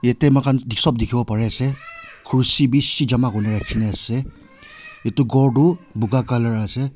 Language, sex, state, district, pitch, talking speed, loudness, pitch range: Nagamese, male, Nagaland, Kohima, 125 Hz, 165 wpm, -17 LUFS, 115-140 Hz